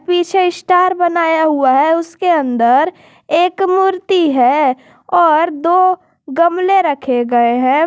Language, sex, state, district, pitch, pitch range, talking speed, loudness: Hindi, female, Jharkhand, Garhwa, 335 Hz, 285-360 Hz, 120 wpm, -13 LUFS